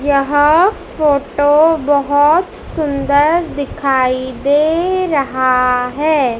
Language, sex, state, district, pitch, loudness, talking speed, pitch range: Hindi, male, Madhya Pradesh, Dhar, 290 Hz, -14 LUFS, 75 wpm, 275-315 Hz